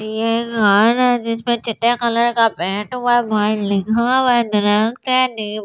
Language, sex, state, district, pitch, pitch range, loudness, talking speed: Hindi, female, Delhi, New Delhi, 230 Hz, 215-240 Hz, -17 LUFS, 160 wpm